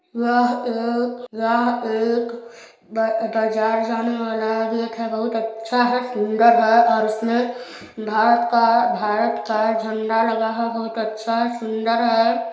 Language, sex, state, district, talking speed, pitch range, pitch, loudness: Hindi, male, Chhattisgarh, Balrampur, 125 wpm, 225-235 Hz, 230 Hz, -20 LUFS